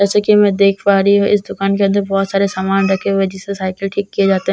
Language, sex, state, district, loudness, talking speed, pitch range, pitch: Hindi, female, Bihar, Katihar, -15 LUFS, 320 wpm, 195-200 Hz, 195 Hz